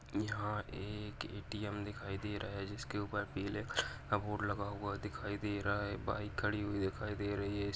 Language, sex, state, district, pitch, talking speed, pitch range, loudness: Bhojpuri, male, Uttar Pradesh, Gorakhpur, 105 Hz, 200 wpm, 100-105 Hz, -40 LUFS